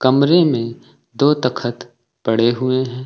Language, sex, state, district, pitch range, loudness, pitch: Hindi, male, Uttar Pradesh, Lucknow, 120-130 Hz, -17 LUFS, 125 Hz